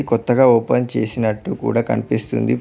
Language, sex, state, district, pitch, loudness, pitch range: Telugu, male, Telangana, Mahabubabad, 115 Hz, -18 LUFS, 110-125 Hz